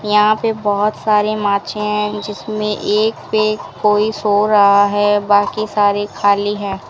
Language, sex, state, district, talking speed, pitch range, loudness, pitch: Hindi, female, Rajasthan, Bikaner, 150 wpm, 205-215 Hz, -15 LUFS, 210 Hz